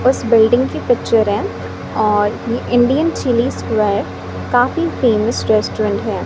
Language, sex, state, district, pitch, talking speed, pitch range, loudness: Hindi, female, Chhattisgarh, Raipur, 230 Hz, 135 wpm, 215-245 Hz, -16 LUFS